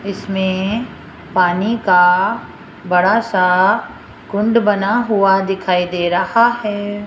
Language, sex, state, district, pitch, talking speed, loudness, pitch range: Hindi, female, Rajasthan, Jaipur, 195 Hz, 100 wpm, -15 LUFS, 185-210 Hz